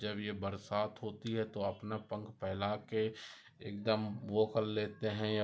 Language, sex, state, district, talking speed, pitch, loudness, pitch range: Hindi, female, Rajasthan, Nagaur, 175 wpm, 105 Hz, -38 LUFS, 105-110 Hz